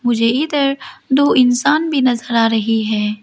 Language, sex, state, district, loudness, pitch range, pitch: Hindi, female, Arunachal Pradesh, Lower Dibang Valley, -15 LUFS, 225-280 Hz, 245 Hz